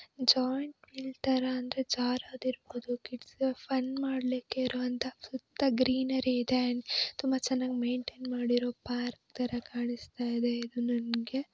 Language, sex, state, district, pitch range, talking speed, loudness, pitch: Kannada, female, Karnataka, Belgaum, 245-260 Hz, 120 wpm, -32 LUFS, 255 Hz